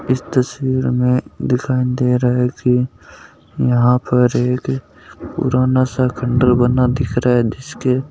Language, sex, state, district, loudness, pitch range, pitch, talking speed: Hindi, male, Rajasthan, Nagaur, -17 LUFS, 125-130 Hz, 125 Hz, 150 wpm